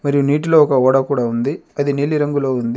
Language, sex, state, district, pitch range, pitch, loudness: Telugu, male, Telangana, Adilabad, 130-145 Hz, 140 Hz, -16 LUFS